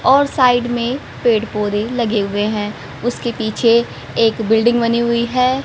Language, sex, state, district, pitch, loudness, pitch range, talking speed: Hindi, female, Haryana, Rohtak, 235 Hz, -17 LUFS, 220-245 Hz, 160 wpm